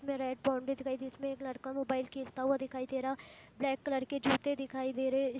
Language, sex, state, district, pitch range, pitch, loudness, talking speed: Hindi, female, Chhattisgarh, Rajnandgaon, 260-275 Hz, 265 Hz, -36 LUFS, 220 wpm